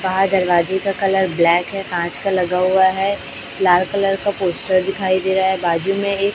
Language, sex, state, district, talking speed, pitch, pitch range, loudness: Hindi, female, Chhattisgarh, Raipur, 210 wpm, 190 Hz, 180-195 Hz, -17 LUFS